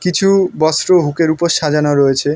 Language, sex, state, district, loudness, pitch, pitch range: Bengali, male, West Bengal, North 24 Parganas, -13 LUFS, 160 Hz, 150-180 Hz